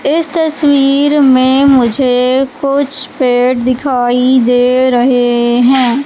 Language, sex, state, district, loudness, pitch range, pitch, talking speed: Hindi, female, Madhya Pradesh, Katni, -10 LUFS, 245-280 Hz, 260 Hz, 100 wpm